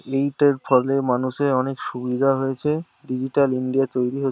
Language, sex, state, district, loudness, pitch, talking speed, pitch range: Bengali, male, West Bengal, Kolkata, -22 LUFS, 135 Hz, 155 wpm, 130-140 Hz